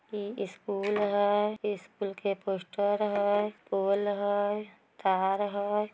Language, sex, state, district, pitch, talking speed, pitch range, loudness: Magahi, female, Bihar, Samastipur, 205 Hz, 110 wpm, 200-210 Hz, -30 LUFS